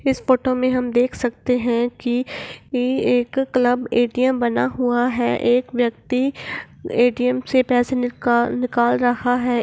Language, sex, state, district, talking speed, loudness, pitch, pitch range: Hindi, female, Bihar, Gopalganj, 150 wpm, -20 LUFS, 245 Hz, 245-255 Hz